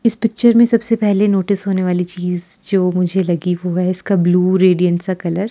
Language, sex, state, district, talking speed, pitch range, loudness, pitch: Hindi, female, Himachal Pradesh, Shimla, 215 wpm, 180-200 Hz, -16 LUFS, 185 Hz